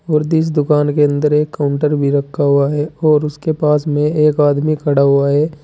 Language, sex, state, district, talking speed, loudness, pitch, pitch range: Hindi, male, Uttar Pradesh, Saharanpur, 215 wpm, -14 LUFS, 150 Hz, 145-150 Hz